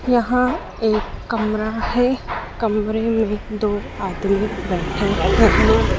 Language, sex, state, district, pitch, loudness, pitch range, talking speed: Hindi, female, Madhya Pradesh, Dhar, 220 Hz, -20 LUFS, 210-235 Hz, 100 wpm